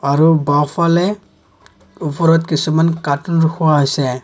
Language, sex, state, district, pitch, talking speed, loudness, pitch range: Assamese, male, Assam, Kamrup Metropolitan, 155 Hz, 100 wpm, -15 LUFS, 140-165 Hz